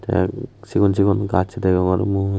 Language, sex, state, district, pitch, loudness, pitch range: Chakma, male, Tripura, West Tripura, 100 Hz, -19 LUFS, 95-100 Hz